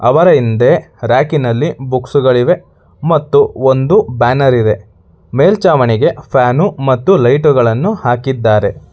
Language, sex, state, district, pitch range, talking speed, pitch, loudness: Kannada, male, Karnataka, Bangalore, 120-150 Hz, 85 wpm, 130 Hz, -11 LUFS